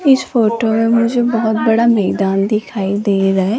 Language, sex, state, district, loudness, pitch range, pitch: Hindi, female, Rajasthan, Jaipur, -14 LUFS, 200-230 Hz, 225 Hz